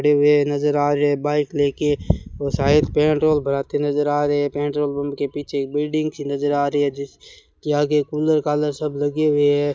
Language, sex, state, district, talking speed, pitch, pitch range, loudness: Hindi, male, Rajasthan, Bikaner, 205 wpm, 145 Hz, 145-150 Hz, -20 LUFS